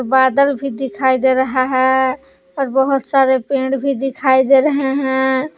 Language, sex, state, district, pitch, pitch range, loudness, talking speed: Hindi, female, Jharkhand, Palamu, 270 Hz, 260-275 Hz, -15 LUFS, 160 wpm